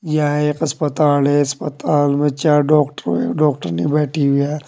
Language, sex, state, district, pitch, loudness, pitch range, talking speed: Hindi, male, Uttar Pradesh, Saharanpur, 145 Hz, -17 LUFS, 140-150 Hz, 165 wpm